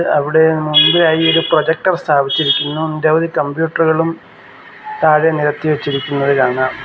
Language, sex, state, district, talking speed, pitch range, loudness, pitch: Malayalam, male, Kerala, Kollam, 105 wpm, 145-160 Hz, -14 LUFS, 155 Hz